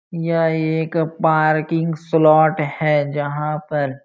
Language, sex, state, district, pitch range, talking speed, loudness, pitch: Hindi, male, Uttar Pradesh, Jalaun, 150-160 Hz, 120 wpm, -18 LUFS, 155 Hz